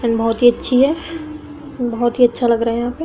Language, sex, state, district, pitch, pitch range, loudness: Hindi, female, Uttar Pradesh, Hamirpur, 245 Hz, 235-300 Hz, -16 LUFS